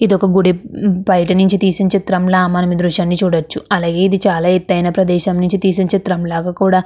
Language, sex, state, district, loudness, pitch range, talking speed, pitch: Telugu, female, Andhra Pradesh, Krishna, -14 LUFS, 180-195 Hz, 155 wpm, 185 Hz